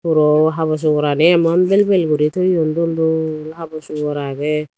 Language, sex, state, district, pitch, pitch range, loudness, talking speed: Chakma, female, Tripura, Dhalai, 155 Hz, 150-165 Hz, -16 LUFS, 165 wpm